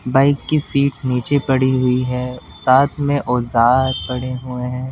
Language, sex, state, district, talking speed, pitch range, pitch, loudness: Hindi, male, Delhi, New Delhi, 160 wpm, 125-140 Hz, 130 Hz, -17 LUFS